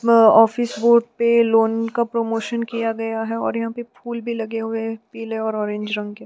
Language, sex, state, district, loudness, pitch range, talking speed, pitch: Hindi, female, Chhattisgarh, Sukma, -20 LUFS, 225-235 Hz, 220 wpm, 225 Hz